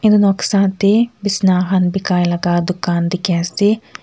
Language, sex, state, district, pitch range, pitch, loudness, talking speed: Nagamese, female, Nagaland, Kohima, 180-205 Hz, 190 Hz, -16 LUFS, 150 wpm